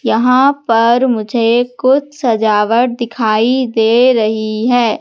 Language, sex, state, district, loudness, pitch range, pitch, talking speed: Hindi, female, Madhya Pradesh, Katni, -13 LUFS, 220-250 Hz, 235 Hz, 110 wpm